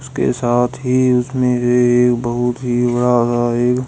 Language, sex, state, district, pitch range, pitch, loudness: Hindi, female, Haryana, Jhajjar, 120-125 Hz, 125 Hz, -16 LUFS